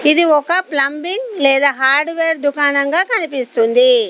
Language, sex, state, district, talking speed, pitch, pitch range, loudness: Telugu, female, Telangana, Komaram Bheem, 100 wpm, 310 Hz, 280-370 Hz, -14 LUFS